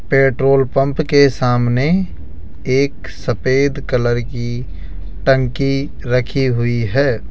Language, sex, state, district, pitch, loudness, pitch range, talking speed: Hindi, male, Rajasthan, Jaipur, 130 Hz, -16 LUFS, 120-135 Hz, 100 wpm